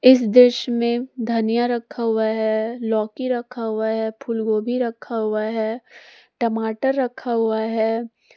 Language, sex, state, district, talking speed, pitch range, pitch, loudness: Hindi, female, Jharkhand, Palamu, 135 wpm, 220-245 Hz, 230 Hz, -21 LUFS